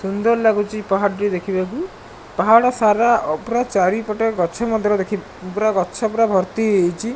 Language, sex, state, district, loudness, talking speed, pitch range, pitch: Odia, male, Odisha, Malkangiri, -18 LUFS, 150 wpm, 190-225 Hz, 210 Hz